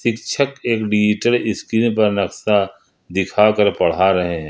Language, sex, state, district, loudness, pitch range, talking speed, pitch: Hindi, male, Jharkhand, Ranchi, -17 LUFS, 100-115 Hz, 145 wpm, 105 Hz